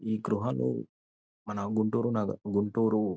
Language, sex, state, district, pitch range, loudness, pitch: Telugu, male, Andhra Pradesh, Guntur, 70-110 Hz, -30 LUFS, 105 Hz